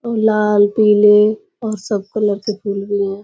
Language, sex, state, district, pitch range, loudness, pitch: Hindi, female, Uttar Pradesh, Budaun, 205-215 Hz, -15 LUFS, 210 Hz